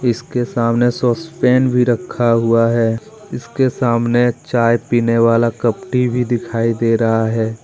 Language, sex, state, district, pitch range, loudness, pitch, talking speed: Hindi, male, Jharkhand, Deoghar, 115-125 Hz, -16 LUFS, 120 Hz, 140 wpm